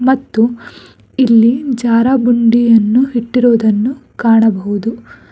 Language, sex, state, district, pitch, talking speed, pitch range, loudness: Kannada, female, Karnataka, Bangalore, 235 Hz, 70 wpm, 225-250 Hz, -12 LUFS